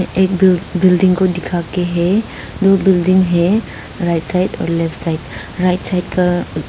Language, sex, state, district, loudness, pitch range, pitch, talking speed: Hindi, female, Arunachal Pradesh, Papum Pare, -15 LUFS, 170-185 Hz, 180 Hz, 145 wpm